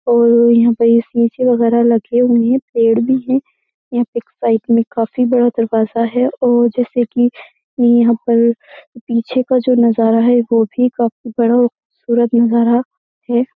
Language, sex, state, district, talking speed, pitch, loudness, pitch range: Hindi, female, Uttar Pradesh, Jyotiba Phule Nagar, 160 wpm, 235 Hz, -14 LUFS, 235-250 Hz